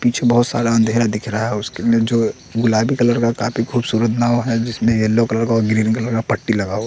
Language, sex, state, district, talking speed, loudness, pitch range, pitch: Hindi, male, Bihar, West Champaran, 235 wpm, -17 LUFS, 110-120 Hz, 115 Hz